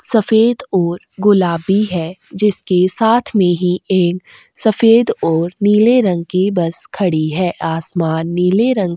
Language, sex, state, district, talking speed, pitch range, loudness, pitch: Hindi, female, Goa, North and South Goa, 140 wpm, 175-215 Hz, -15 LUFS, 185 Hz